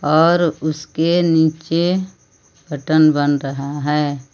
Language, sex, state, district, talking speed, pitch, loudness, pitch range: Hindi, female, Jharkhand, Palamu, 95 wpm, 155 Hz, -17 LUFS, 145-165 Hz